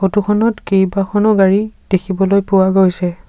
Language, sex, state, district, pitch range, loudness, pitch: Assamese, male, Assam, Sonitpur, 190-205 Hz, -14 LUFS, 195 Hz